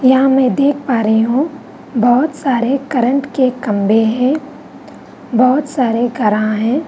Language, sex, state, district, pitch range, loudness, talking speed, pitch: Hindi, female, Bihar, Vaishali, 235-275 Hz, -14 LUFS, 130 wpm, 255 Hz